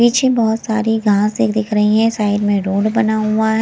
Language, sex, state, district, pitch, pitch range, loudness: Hindi, female, Himachal Pradesh, Shimla, 215 Hz, 205-225 Hz, -15 LUFS